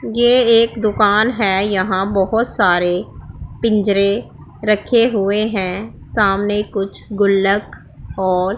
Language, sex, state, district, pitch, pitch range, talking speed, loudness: Hindi, male, Punjab, Pathankot, 205 Hz, 195-220 Hz, 110 wpm, -16 LUFS